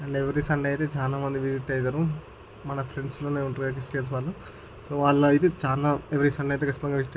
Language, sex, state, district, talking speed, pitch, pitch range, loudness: Telugu, male, Andhra Pradesh, Chittoor, 175 wpm, 140 Hz, 135-145 Hz, -27 LUFS